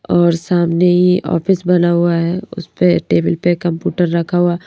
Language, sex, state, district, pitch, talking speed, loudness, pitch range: Hindi, female, Madhya Pradesh, Bhopal, 175 Hz, 180 wpm, -15 LUFS, 170-180 Hz